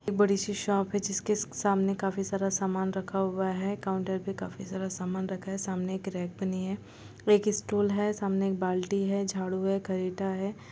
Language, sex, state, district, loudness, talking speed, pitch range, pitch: Hindi, female, Uttar Pradesh, Jalaun, -30 LUFS, 195 wpm, 190-200 Hz, 195 Hz